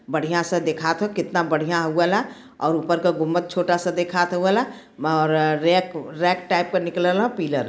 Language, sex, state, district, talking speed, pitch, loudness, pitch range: Bhojpuri, female, Uttar Pradesh, Varanasi, 225 wpm, 175 Hz, -21 LUFS, 160-180 Hz